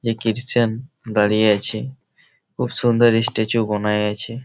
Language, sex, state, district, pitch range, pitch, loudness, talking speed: Bengali, male, West Bengal, Malda, 110-120 Hz, 115 Hz, -19 LUFS, 120 wpm